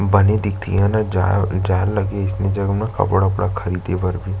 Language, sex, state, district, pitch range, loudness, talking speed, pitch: Chhattisgarhi, male, Chhattisgarh, Sarguja, 95-100 Hz, -19 LUFS, 205 wpm, 100 Hz